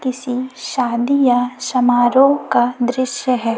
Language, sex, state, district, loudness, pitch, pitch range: Hindi, female, Chhattisgarh, Raipur, -16 LUFS, 250 Hz, 245-260 Hz